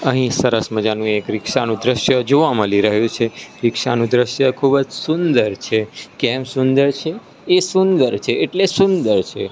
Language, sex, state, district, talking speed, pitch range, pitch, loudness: Gujarati, male, Gujarat, Gandhinagar, 170 wpm, 115-140 Hz, 130 Hz, -17 LUFS